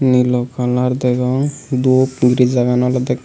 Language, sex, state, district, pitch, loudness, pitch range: Chakma, male, Tripura, Unakoti, 125 Hz, -16 LUFS, 125-130 Hz